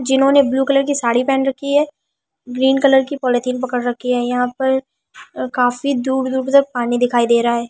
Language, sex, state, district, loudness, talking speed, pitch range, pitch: Hindi, female, Delhi, New Delhi, -17 LUFS, 195 wpm, 245-275 Hz, 260 Hz